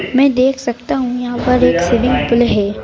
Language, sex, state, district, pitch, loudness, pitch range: Hindi, male, Madhya Pradesh, Bhopal, 245 Hz, -14 LUFS, 240-255 Hz